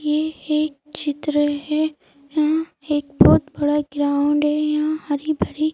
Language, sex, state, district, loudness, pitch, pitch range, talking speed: Hindi, female, Madhya Pradesh, Bhopal, -20 LUFS, 300 Hz, 290-310 Hz, 135 wpm